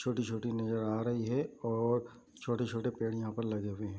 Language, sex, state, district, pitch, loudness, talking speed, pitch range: Hindi, male, Bihar, Bhagalpur, 115 Hz, -35 LUFS, 195 wpm, 110-120 Hz